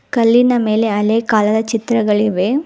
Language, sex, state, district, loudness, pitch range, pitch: Kannada, female, Karnataka, Bangalore, -14 LUFS, 215-235 Hz, 225 Hz